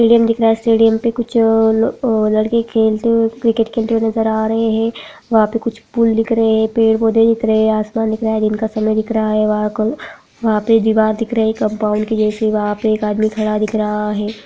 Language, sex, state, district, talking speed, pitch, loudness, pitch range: Hindi, female, Bihar, Jamui, 245 wpm, 220 Hz, -15 LUFS, 215-225 Hz